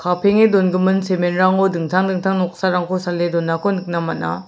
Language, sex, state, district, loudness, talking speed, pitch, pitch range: Garo, male, Meghalaya, South Garo Hills, -17 LUFS, 145 wpm, 185 Hz, 175-190 Hz